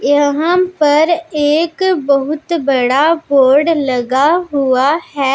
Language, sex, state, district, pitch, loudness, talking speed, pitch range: Hindi, female, Punjab, Pathankot, 295 Hz, -13 LUFS, 100 wpm, 275-330 Hz